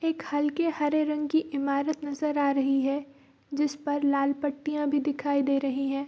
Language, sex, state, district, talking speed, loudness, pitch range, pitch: Hindi, female, Bihar, Darbhanga, 185 wpm, -28 LUFS, 280-295 Hz, 290 Hz